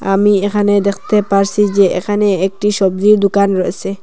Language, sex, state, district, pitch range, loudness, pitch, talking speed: Bengali, female, Assam, Hailakandi, 195-205 Hz, -13 LUFS, 200 Hz, 150 wpm